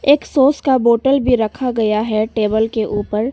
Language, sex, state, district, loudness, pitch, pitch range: Hindi, female, Arunachal Pradesh, Papum Pare, -16 LUFS, 230 Hz, 215-265 Hz